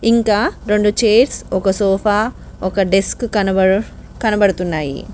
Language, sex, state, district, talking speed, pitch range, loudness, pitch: Telugu, female, Telangana, Mahabubabad, 105 wpm, 190-215 Hz, -16 LUFS, 205 Hz